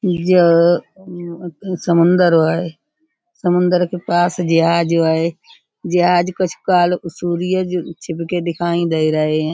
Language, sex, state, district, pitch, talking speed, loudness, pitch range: Hindi, female, Uttar Pradesh, Budaun, 175 Hz, 95 wpm, -16 LUFS, 170-180 Hz